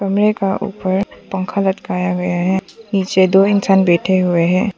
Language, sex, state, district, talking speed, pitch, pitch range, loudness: Hindi, female, Arunachal Pradesh, Papum Pare, 165 wpm, 190 Hz, 185-200 Hz, -16 LUFS